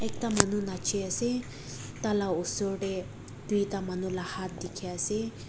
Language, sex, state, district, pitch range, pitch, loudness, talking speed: Nagamese, female, Nagaland, Dimapur, 180-205 Hz, 190 Hz, -31 LUFS, 140 wpm